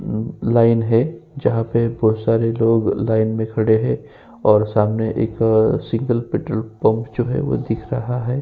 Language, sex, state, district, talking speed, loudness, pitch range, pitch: Hindi, male, Uttar Pradesh, Jyotiba Phule Nagar, 165 wpm, -19 LUFS, 110-115 Hz, 115 Hz